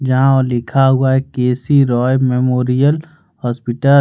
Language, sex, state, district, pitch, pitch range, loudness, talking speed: Hindi, male, Jharkhand, Ranchi, 130 Hz, 125-140 Hz, -15 LUFS, 150 wpm